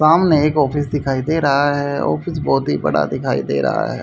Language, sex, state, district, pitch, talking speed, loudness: Hindi, male, Haryana, Rohtak, 140 Hz, 225 wpm, -17 LUFS